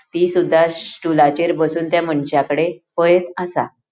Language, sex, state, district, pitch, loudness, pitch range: Konkani, female, Goa, North and South Goa, 165 Hz, -17 LUFS, 155-175 Hz